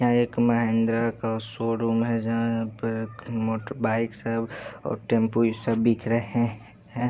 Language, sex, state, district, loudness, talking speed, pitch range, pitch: Hindi, male, Bihar, Supaul, -26 LUFS, 145 wpm, 110-115 Hz, 115 Hz